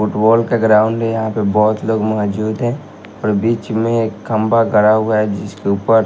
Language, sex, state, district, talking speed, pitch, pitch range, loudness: Hindi, male, Haryana, Rohtak, 200 wpm, 110 Hz, 105-115 Hz, -15 LUFS